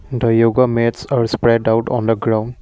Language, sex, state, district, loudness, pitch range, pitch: English, male, Assam, Kamrup Metropolitan, -16 LUFS, 115-125 Hz, 115 Hz